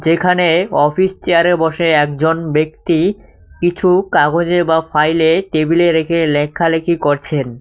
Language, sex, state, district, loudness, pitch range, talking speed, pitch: Bengali, male, West Bengal, Cooch Behar, -14 LUFS, 155-175 Hz, 110 wpm, 165 Hz